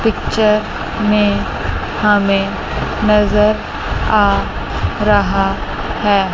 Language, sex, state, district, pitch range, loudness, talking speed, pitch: Hindi, female, Chandigarh, Chandigarh, 200-210 Hz, -15 LUFS, 65 wpm, 210 Hz